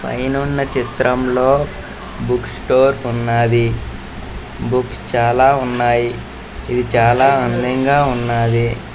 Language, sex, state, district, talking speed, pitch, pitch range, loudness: Telugu, male, Andhra Pradesh, Visakhapatnam, 80 wpm, 125 Hz, 120-130 Hz, -16 LUFS